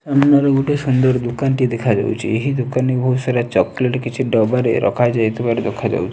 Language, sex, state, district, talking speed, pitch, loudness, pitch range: Odia, male, Odisha, Nuapada, 165 wpm, 125 Hz, -17 LUFS, 120-130 Hz